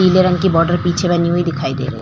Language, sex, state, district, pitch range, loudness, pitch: Hindi, female, Goa, North and South Goa, 165-180 Hz, -15 LUFS, 175 Hz